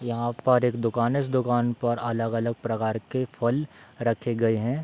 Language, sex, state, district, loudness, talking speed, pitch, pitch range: Hindi, male, Bihar, Darbhanga, -26 LUFS, 185 wpm, 120 Hz, 115-125 Hz